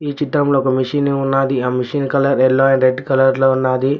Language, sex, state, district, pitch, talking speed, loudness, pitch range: Telugu, male, Telangana, Mahabubabad, 135 Hz, 210 wpm, -15 LUFS, 130-140 Hz